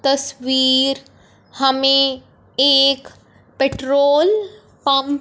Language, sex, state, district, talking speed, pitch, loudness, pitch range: Hindi, male, Punjab, Fazilka, 70 wpm, 275 Hz, -16 LUFS, 270-280 Hz